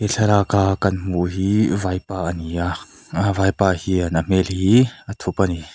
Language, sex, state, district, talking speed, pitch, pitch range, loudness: Mizo, male, Mizoram, Aizawl, 175 wpm, 95 Hz, 90-100 Hz, -20 LUFS